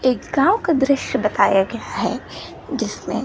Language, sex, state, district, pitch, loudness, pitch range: Hindi, female, Gujarat, Gandhinagar, 260 Hz, -20 LUFS, 210-280 Hz